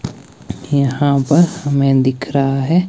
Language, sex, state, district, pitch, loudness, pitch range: Hindi, male, Himachal Pradesh, Shimla, 140 Hz, -15 LUFS, 135-150 Hz